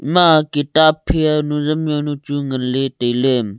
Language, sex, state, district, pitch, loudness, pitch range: Wancho, male, Arunachal Pradesh, Longding, 150 Hz, -16 LUFS, 135-155 Hz